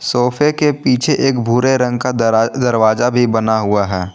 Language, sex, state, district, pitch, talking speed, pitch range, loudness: Hindi, male, Jharkhand, Garhwa, 120 Hz, 190 wpm, 110-130 Hz, -14 LUFS